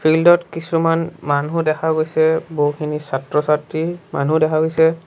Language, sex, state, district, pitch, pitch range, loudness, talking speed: Assamese, male, Assam, Sonitpur, 160 Hz, 150-165 Hz, -18 LUFS, 140 wpm